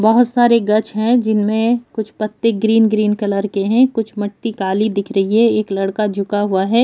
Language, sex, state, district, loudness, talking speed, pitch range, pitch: Hindi, female, Uttar Pradesh, Jyotiba Phule Nagar, -16 LUFS, 200 wpm, 205-225 Hz, 215 Hz